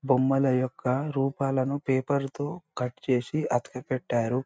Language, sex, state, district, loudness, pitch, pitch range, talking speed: Telugu, male, Andhra Pradesh, Anantapur, -28 LUFS, 130 Hz, 125-140 Hz, 120 wpm